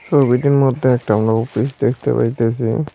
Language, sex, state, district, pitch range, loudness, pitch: Bengali, male, West Bengal, Cooch Behar, 115-140 Hz, -16 LUFS, 125 Hz